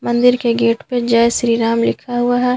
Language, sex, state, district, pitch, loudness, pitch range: Hindi, female, Jharkhand, Garhwa, 240 Hz, -15 LUFS, 230-245 Hz